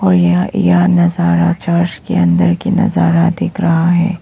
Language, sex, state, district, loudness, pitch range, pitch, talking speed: Hindi, female, Arunachal Pradesh, Papum Pare, -13 LUFS, 165-180 Hz, 175 Hz, 170 wpm